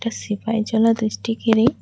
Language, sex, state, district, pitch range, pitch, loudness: Bengali, female, Tripura, West Tripura, 220-230 Hz, 225 Hz, -20 LUFS